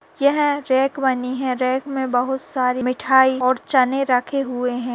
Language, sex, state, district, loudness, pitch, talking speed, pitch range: Hindi, female, Chhattisgarh, Raigarh, -19 LUFS, 260 Hz, 170 wpm, 250-270 Hz